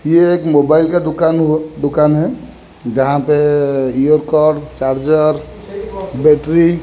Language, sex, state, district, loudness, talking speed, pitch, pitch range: Hindi, male, Odisha, Khordha, -13 LUFS, 130 wpm, 155 Hz, 145-165 Hz